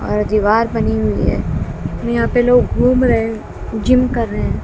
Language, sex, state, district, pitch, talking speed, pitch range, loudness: Hindi, female, Bihar, West Champaran, 230 Hz, 170 wpm, 210-245 Hz, -16 LUFS